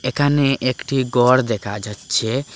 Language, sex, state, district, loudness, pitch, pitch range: Bengali, male, Assam, Hailakandi, -19 LUFS, 130 Hz, 115-135 Hz